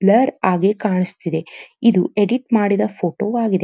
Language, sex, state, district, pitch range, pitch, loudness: Kannada, female, Karnataka, Dharwad, 185-225 Hz, 205 Hz, -18 LUFS